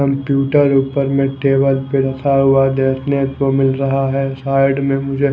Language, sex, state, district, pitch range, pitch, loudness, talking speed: Hindi, male, Chhattisgarh, Raipur, 135-140 Hz, 135 Hz, -15 LUFS, 170 wpm